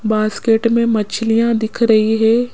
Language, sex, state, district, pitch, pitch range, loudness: Hindi, female, Rajasthan, Jaipur, 225 Hz, 220-230 Hz, -15 LUFS